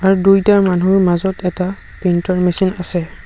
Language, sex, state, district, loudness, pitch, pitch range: Assamese, male, Assam, Sonitpur, -15 LUFS, 185 Hz, 180-190 Hz